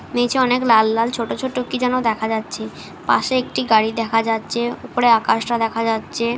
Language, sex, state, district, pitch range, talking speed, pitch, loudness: Bengali, female, West Bengal, North 24 Parganas, 225-245 Hz, 190 wpm, 235 Hz, -19 LUFS